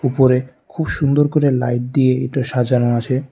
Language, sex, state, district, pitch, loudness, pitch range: Bengali, male, Tripura, West Tripura, 130 Hz, -17 LUFS, 125-140 Hz